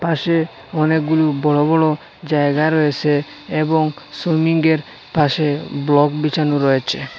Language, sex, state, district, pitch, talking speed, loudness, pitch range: Bengali, male, Assam, Hailakandi, 155 Hz, 100 wpm, -17 LUFS, 145-160 Hz